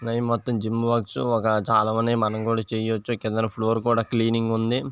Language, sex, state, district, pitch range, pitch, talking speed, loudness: Telugu, male, Andhra Pradesh, Visakhapatnam, 110-115 Hz, 115 Hz, 170 wpm, -24 LUFS